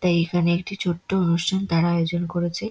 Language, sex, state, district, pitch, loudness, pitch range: Bengali, female, West Bengal, Dakshin Dinajpur, 175 Hz, -23 LUFS, 170-185 Hz